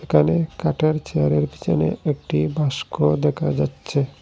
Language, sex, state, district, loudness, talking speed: Bengali, male, Assam, Hailakandi, -21 LUFS, 115 wpm